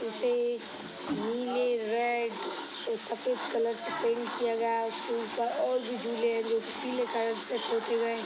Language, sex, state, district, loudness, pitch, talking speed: Hindi, female, Bihar, East Champaran, -31 LUFS, 240 Hz, 180 wpm